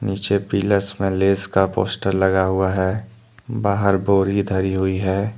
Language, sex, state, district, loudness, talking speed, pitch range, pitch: Hindi, male, Jharkhand, Deoghar, -19 LUFS, 155 wpm, 95-100 Hz, 100 Hz